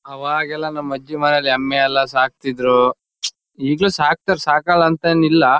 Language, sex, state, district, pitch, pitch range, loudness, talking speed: Kannada, male, Karnataka, Shimoga, 145 Hz, 135-160 Hz, -17 LUFS, 130 wpm